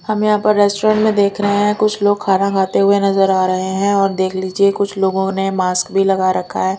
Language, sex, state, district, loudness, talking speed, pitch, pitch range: Hindi, female, Delhi, New Delhi, -15 LUFS, 245 wpm, 195 Hz, 190-205 Hz